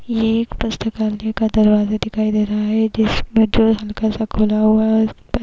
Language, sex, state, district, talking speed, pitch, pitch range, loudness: Hindi, female, Uttar Pradesh, Jyotiba Phule Nagar, 210 wpm, 220 Hz, 215-220 Hz, -17 LUFS